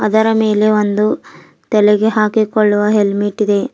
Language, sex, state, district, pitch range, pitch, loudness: Kannada, female, Karnataka, Bidar, 210-215 Hz, 210 Hz, -14 LUFS